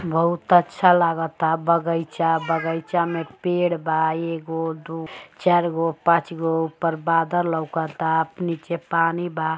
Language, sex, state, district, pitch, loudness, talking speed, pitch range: Bhojpuri, female, Uttar Pradesh, Gorakhpur, 165 Hz, -22 LUFS, 125 wpm, 160-170 Hz